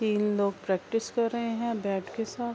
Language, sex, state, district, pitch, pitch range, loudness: Urdu, female, Andhra Pradesh, Anantapur, 225 Hz, 200-230 Hz, -30 LUFS